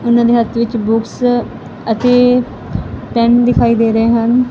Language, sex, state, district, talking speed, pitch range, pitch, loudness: Punjabi, female, Punjab, Fazilka, 145 wpm, 230-245 Hz, 235 Hz, -13 LUFS